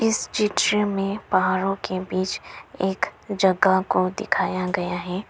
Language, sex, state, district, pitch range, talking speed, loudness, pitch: Hindi, female, Arunachal Pradesh, Papum Pare, 185-200 Hz, 135 wpm, -23 LUFS, 190 Hz